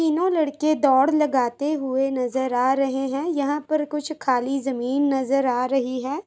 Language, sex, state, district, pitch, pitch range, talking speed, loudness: Hindi, female, Uttar Pradesh, Gorakhpur, 275 Hz, 260-300 Hz, 180 wpm, -22 LUFS